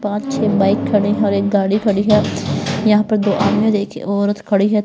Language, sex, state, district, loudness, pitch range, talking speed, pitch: Hindi, female, Bihar, Patna, -16 LUFS, 200-210 Hz, 210 wpm, 205 Hz